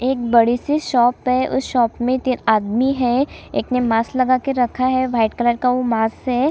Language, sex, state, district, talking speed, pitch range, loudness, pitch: Hindi, female, Chhattisgarh, Kabirdham, 220 wpm, 240-255 Hz, -18 LUFS, 250 Hz